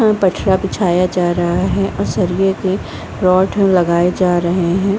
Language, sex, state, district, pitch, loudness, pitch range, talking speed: Hindi, female, Bihar, Saharsa, 185 Hz, -15 LUFS, 175-190 Hz, 180 wpm